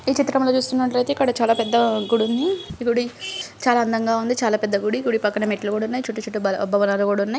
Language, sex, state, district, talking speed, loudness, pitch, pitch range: Telugu, female, Andhra Pradesh, Srikakulam, 210 wpm, -21 LUFS, 230 Hz, 215-250 Hz